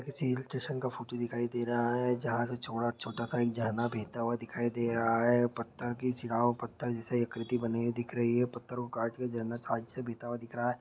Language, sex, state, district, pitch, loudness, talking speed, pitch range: Hindi, male, Bihar, Saharsa, 120 Hz, -34 LUFS, 250 wpm, 115-120 Hz